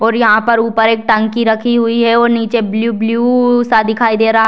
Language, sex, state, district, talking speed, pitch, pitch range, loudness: Hindi, female, Bihar, Purnia, 255 wpm, 230 Hz, 220-235 Hz, -12 LUFS